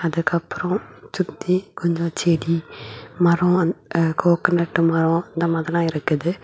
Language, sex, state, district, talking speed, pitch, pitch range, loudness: Tamil, female, Tamil Nadu, Kanyakumari, 110 wpm, 170 Hz, 165-175 Hz, -21 LUFS